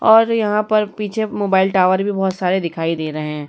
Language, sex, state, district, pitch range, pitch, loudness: Hindi, female, Uttar Pradesh, Muzaffarnagar, 180-210 Hz, 195 Hz, -17 LUFS